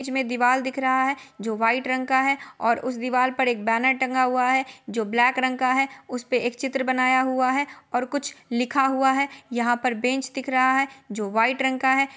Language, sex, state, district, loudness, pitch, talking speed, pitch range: Hindi, female, Chhattisgarh, Korba, -23 LUFS, 260 Hz, 225 wpm, 245-265 Hz